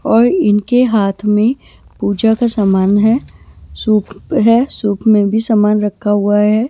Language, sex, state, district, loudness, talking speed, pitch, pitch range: Hindi, female, Himachal Pradesh, Shimla, -13 LUFS, 150 wpm, 210 Hz, 205-225 Hz